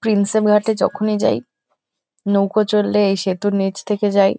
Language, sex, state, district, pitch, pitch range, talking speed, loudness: Bengali, female, West Bengal, Kolkata, 205 Hz, 200-215 Hz, 150 wpm, -18 LUFS